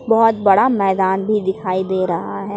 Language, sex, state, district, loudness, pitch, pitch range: Hindi, female, Jharkhand, Palamu, -17 LUFS, 195 Hz, 190-215 Hz